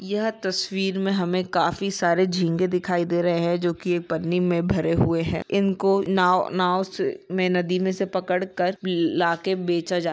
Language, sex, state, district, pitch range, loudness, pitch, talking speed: Hindi, female, Jharkhand, Jamtara, 175-190 Hz, -23 LUFS, 180 Hz, 195 wpm